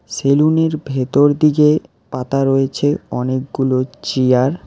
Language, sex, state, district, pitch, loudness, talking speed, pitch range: Bengali, male, West Bengal, Alipurduar, 135 Hz, -16 LUFS, 115 wpm, 130-150 Hz